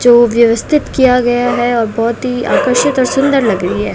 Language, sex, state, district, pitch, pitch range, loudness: Hindi, female, Rajasthan, Bikaner, 245 Hz, 230-260 Hz, -12 LUFS